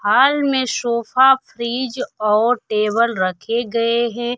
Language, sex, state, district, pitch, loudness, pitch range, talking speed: Hindi, female, Bihar, Kaimur, 235 Hz, -18 LUFS, 225-255 Hz, 125 wpm